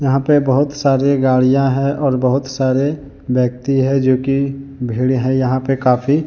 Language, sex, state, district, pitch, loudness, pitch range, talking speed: Hindi, male, Jharkhand, Deoghar, 135 Hz, -16 LUFS, 130-140 Hz, 170 wpm